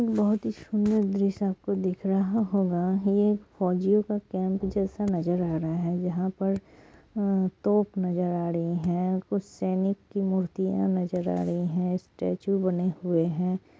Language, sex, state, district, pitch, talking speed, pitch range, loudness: Hindi, female, West Bengal, Jalpaiguri, 190 Hz, 160 wpm, 180-200 Hz, -27 LUFS